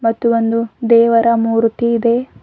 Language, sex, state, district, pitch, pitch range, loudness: Kannada, female, Karnataka, Bidar, 230 Hz, 230-235 Hz, -14 LUFS